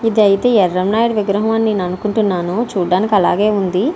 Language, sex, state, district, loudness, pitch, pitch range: Telugu, female, Andhra Pradesh, Srikakulam, -15 LUFS, 205 Hz, 185-220 Hz